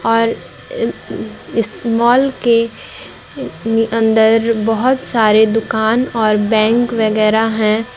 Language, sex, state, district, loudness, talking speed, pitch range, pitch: Hindi, female, Jharkhand, Garhwa, -14 LUFS, 90 wpm, 220-230 Hz, 225 Hz